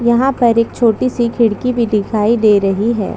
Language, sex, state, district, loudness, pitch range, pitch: Hindi, female, Chhattisgarh, Bastar, -14 LUFS, 215-240 Hz, 230 Hz